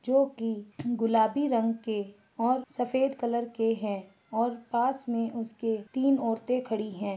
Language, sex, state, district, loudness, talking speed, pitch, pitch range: Hindi, female, Chhattisgarh, Bastar, -29 LUFS, 150 wpm, 230 Hz, 220-250 Hz